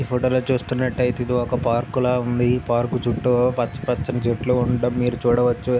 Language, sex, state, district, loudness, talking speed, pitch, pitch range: Telugu, male, Andhra Pradesh, Visakhapatnam, -21 LUFS, 195 wpm, 125 Hz, 120-125 Hz